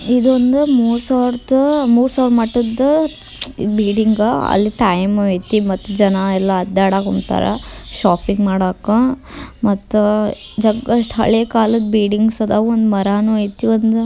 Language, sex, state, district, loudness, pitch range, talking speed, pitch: Kannada, male, Karnataka, Dharwad, -15 LUFS, 205-240 Hz, 95 wpm, 220 Hz